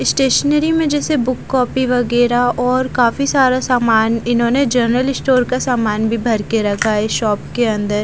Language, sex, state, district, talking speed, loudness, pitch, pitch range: Hindi, female, Haryana, Jhajjar, 170 wpm, -15 LUFS, 245 Hz, 225-260 Hz